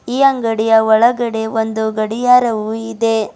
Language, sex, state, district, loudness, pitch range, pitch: Kannada, female, Karnataka, Bidar, -15 LUFS, 220-235 Hz, 225 Hz